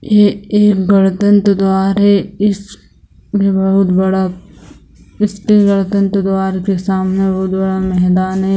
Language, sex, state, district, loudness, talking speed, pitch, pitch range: Hindi, female, Bihar, Gopalganj, -13 LUFS, 120 wpm, 195 Hz, 190-200 Hz